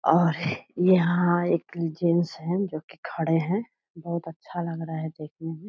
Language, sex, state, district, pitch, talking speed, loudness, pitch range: Hindi, female, Bihar, Purnia, 170 Hz, 170 wpm, -26 LUFS, 165-175 Hz